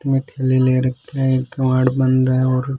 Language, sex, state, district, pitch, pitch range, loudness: Rajasthani, male, Rajasthan, Churu, 130 Hz, 130-135 Hz, -18 LUFS